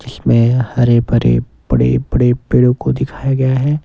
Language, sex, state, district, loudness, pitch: Hindi, male, Himachal Pradesh, Shimla, -14 LUFS, 120 Hz